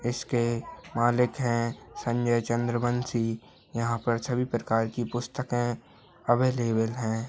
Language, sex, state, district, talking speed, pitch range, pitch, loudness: Hindi, male, Uttar Pradesh, Ghazipur, 105 wpm, 115-120 Hz, 120 Hz, -28 LUFS